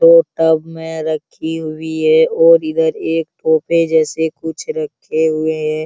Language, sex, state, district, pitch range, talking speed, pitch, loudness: Hindi, male, Bihar, Araria, 160-165 Hz, 145 wpm, 160 Hz, -15 LUFS